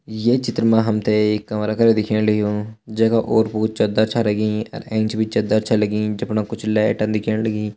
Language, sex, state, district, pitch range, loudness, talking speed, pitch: Hindi, male, Uttarakhand, Uttarkashi, 105-110 Hz, -19 LUFS, 215 wpm, 110 Hz